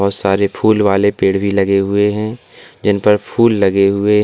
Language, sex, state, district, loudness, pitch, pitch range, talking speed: Hindi, male, Uttar Pradesh, Lalitpur, -14 LUFS, 100 Hz, 100-105 Hz, 210 wpm